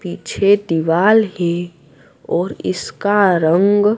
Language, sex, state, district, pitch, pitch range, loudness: Hindi, female, Madhya Pradesh, Dhar, 180 Hz, 170-205 Hz, -16 LUFS